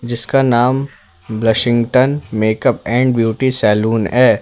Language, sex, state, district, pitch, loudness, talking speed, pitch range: Hindi, male, Uttar Pradesh, Lalitpur, 120 Hz, -14 LUFS, 110 wpm, 110-130 Hz